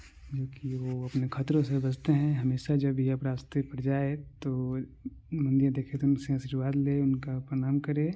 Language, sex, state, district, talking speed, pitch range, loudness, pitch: Maithili, male, Bihar, Supaul, 160 wpm, 130-140 Hz, -30 LUFS, 135 Hz